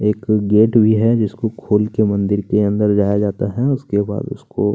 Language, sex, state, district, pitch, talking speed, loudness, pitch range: Hindi, male, Chhattisgarh, Kabirdham, 105 Hz, 200 wpm, -17 LUFS, 105-110 Hz